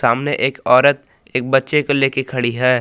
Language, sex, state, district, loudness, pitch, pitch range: Hindi, male, Jharkhand, Palamu, -16 LUFS, 130 Hz, 125-140 Hz